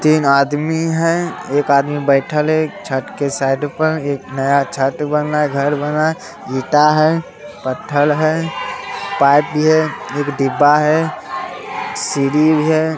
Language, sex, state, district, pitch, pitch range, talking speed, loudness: Angika, male, Bihar, Begusarai, 150 Hz, 140-155 Hz, 165 wpm, -16 LUFS